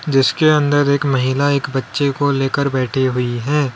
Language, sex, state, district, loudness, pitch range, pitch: Hindi, male, Uttar Pradesh, Lalitpur, -16 LUFS, 130-145 Hz, 140 Hz